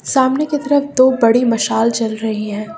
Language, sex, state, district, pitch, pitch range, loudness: Hindi, female, Uttar Pradesh, Lucknow, 235 Hz, 220-275 Hz, -15 LUFS